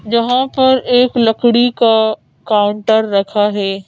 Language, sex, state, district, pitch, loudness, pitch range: Hindi, female, Madhya Pradesh, Bhopal, 225 Hz, -13 LUFS, 210-245 Hz